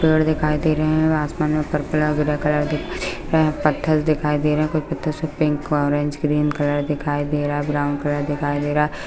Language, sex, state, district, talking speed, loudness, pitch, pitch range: Hindi, female, Bihar, Darbhanga, 185 wpm, -21 LUFS, 150 Hz, 145-155 Hz